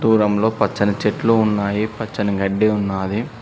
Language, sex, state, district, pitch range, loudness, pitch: Telugu, male, Telangana, Mahabubabad, 100-110 Hz, -19 LUFS, 105 Hz